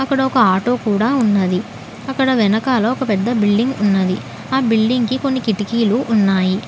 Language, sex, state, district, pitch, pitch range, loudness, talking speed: Telugu, female, Telangana, Hyderabad, 225 Hz, 205-255 Hz, -16 LUFS, 155 wpm